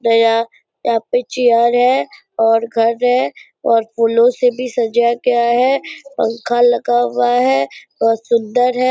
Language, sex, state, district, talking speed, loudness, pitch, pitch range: Hindi, female, Bihar, Purnia, 150 wpm, -15 LUFS, 235 Hz, 225-245 Hz